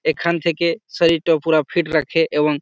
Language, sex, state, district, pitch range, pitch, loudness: Bengali, male, West Bengal, Malda, 155-170 Hz, 165 Hz, -18 LUFS